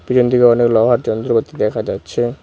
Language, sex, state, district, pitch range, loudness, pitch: Bengali, male, West Bengal, Cooch Behar, 120-125 Hz, -15 LUFS, 120 Hz